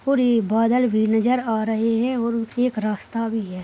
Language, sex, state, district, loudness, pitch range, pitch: Hindi, female, Goa, North and South Goa, -21 LUFS, 220-245 Hz, 230 Hz